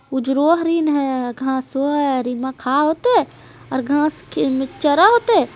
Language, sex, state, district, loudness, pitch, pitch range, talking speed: Hindi, female, Bihar, Jamui, -18 LUFS, 280 Hz, 265-310 Hz, 140 wpm